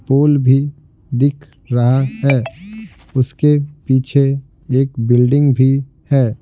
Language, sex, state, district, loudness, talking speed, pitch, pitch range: Hindi, male, Bihar, Patna, -15 LUFS, 105 wpm, 135 Hz, 130-140 Hz